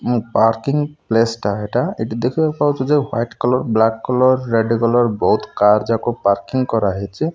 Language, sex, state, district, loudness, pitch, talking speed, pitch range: Odia, male, Odisha, Malkangiri, -17 LUFS, 115 Hz, 165 wpm, 110-130 Hz